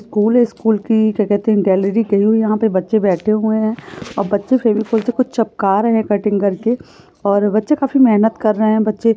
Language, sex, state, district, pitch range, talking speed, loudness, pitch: Hindi, female, Jharkhand, Jamtara, 205-225 Hz, 195 wpm, -15 LUFS, 220 Hz